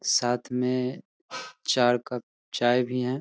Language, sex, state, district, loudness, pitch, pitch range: Hindi, male, Bihar, Darbhanga, -26 LUFS, 125 Hz, 120-125 Hz